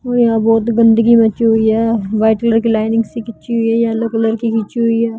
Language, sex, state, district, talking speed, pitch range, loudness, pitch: Hindi, female, Bihar, Patna, 240 wpm, 225-230 Hz, -14 LUFS, 225 Hz